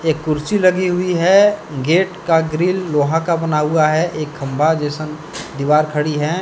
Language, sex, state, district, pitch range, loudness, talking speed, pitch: Hindi, male, Jharkhand, Deoghar, 150-180 Hz, -16 LUFS, 175 wpm, 160 Hz